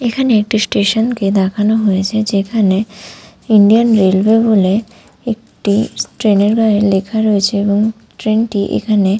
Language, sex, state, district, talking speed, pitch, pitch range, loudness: Bengali, female, West Bengal, Malda, 115 wpm, 210 Hz, 200-220 Hz, -13 LUFS